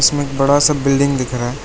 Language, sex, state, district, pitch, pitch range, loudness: Hindi, male, West Bengal, Alipurduar, 140 Hz, 130-145 Hz, -15 LUFS